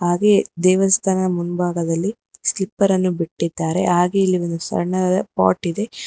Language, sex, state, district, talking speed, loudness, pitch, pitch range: Kannada, female, Karnataka, Bangalore, 120 wpm, -19 LUFS, 185 Hz, 170-195 Hz